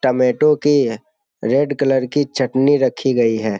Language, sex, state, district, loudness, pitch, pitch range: Hindi, male, Bihar, Jamui, -17 LUFS, 135 Hz, 125-145 Hz